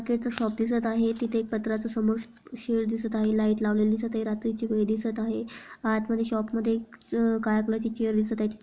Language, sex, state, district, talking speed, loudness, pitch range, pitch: Marathi, female, Maharashtra, Chandrapur, 195 wpm, -28 LUFS, 220-230 Hz, 225 Hz